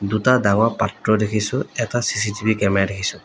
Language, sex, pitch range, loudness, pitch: Assamese, male, 100-115 Hz, -19 LUFS, 110 Hz